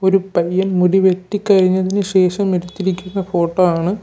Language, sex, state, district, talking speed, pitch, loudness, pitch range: Malayalam, male, Kerala, Kollam, 135 wpm, 190 Hz, -16 LUFS, 180-195 Hz